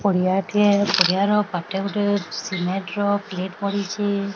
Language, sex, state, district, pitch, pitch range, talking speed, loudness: Odia, female, Odisha, Sambalpur, 200 Hz, 190-205 Hz, 110 wpm, -21 LUFS